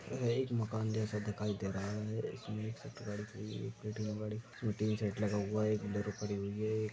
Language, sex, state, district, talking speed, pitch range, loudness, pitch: Hindi, male, Uttarakhand, Uttarkashi, 190 wpm, 105-110 Hz, -38 LUFS, 105 Hz